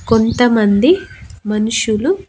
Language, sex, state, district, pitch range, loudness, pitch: Telugu, female, Andhra Pradesh, Annamaya, 215-265 Hz, -14 LUFS, 225 Hz